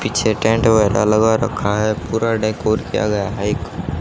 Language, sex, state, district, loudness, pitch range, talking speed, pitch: Hindi, male, Haryana, Charkhi Dadri, -17 LUFS, 105-110 Hz, 180 wpm, 110 Hz